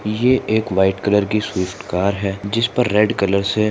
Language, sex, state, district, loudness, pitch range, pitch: Hindi, male, Maharashtra, Solapur, -18 LUFS, 100-110 Hz, 105 Hz